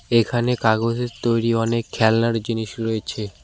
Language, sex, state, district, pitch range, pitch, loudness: Bengali, male, West Bengal, Cooch Behar, 110-115 Hz, 115 Hz, -21 LUFS